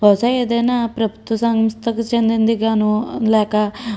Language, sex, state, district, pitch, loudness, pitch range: Telugu, female, Andhra Pradesh, Srikakulam, 225 Hz, -17 LUFS, 220-235 Hz